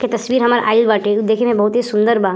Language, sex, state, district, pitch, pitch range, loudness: Bhojpuri, female, Uttar Pradesh, Gorakhpur, 225 Hz, 210-240 Hz, -15 LUFS